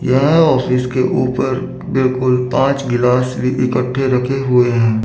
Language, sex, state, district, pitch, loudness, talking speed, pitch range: Hindi, male, Chandigarh, Chandigarh, 130 Hz, -15 LUFS, 140 wpm, 125-135 Hz